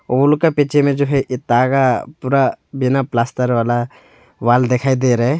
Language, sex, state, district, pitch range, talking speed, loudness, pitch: Hindi, male, Arunachal Pradesh, Longding, 120-140 Hz, 190 wpm, -16 LUFS, 130 Hz